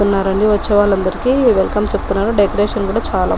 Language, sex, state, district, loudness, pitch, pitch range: Telugu, female, Telangana, Nalgonda, -15 LUFS, 205 Hz, 200-210 Hz